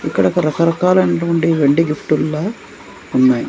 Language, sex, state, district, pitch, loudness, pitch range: Telugu, male, Andhra Pradesh, Manyam, 165 Hz, -16 LUFS, 150-175 Hz